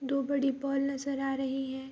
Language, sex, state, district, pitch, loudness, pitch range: Hindi, female, Bihar, Vaishali, 275 Hz, -32 LUFS, 270-275 Hz